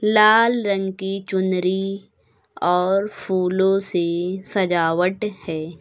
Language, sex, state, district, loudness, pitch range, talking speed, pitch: Hindi, female, Uttar Pradesh, Lucknow, -20 LUFS, 180-200 Hz, 95 wpm, 190 Hz